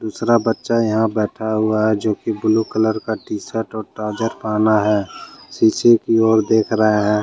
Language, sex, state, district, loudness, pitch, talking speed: Hindi, male, Jharkhand, Deoghar, -18 LUFS, 110 Hz, 185 wpm